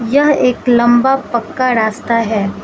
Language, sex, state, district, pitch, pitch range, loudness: Hindi, female, Manipur, Imphal West, 240 Hz, 225-260 Hz, -13 LUFS